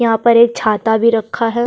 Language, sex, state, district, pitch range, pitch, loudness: Hindi, female, Chhattisgarh, Sukma, 220-235 Hz, 230 Hz, -13 LUFS